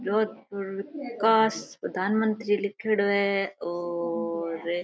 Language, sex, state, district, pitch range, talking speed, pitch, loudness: Rajasthani, female, Rajasthan, Nagaur, 175-215 Hz, 85 wpm, 200 Hz, -27 LUFS